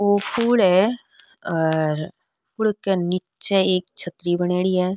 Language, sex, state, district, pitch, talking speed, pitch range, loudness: Rajasthani, female, Rajasthan, Nagaur, 185 Hz, 135 wpm, 175-205 Hz, -21 LUFS